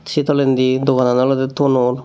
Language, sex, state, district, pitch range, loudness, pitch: Chakma, male, Tripura, Dhalai, 130-140 Hz, -16 LUFS, 130 Hz